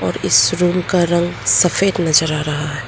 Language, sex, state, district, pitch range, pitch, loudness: Hindi, female, Arunachal Pradesh, Lower Dibang Valley, 150-180 Hz, 170 Hz, -15 LUFS